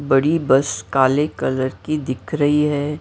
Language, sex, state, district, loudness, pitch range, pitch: Hindi, female, Maharashtra, Mumbai Suburban, -19 LUFS, 130-150 Hz, 140 Hz